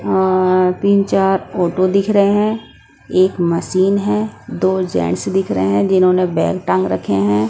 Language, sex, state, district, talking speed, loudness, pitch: Hindi, female, Bihar, West Champaran, 160 wpm, -16 LUFS, 185 Hz